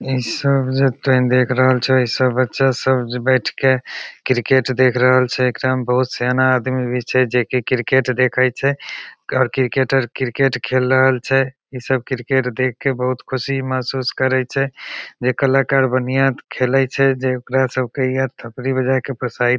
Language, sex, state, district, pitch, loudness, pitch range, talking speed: Maithili, male, Bihar, Begusarai, 130 Hz, -18 LUFS, 125-130 Hz, 190 wpm